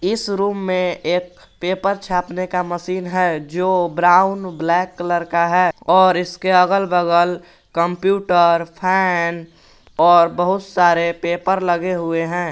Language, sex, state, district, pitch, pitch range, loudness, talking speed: Hindi, male, Jharkhand, Garhwa, 180 Hz, 175-185 Hz, -17 LUFS, 135 wpm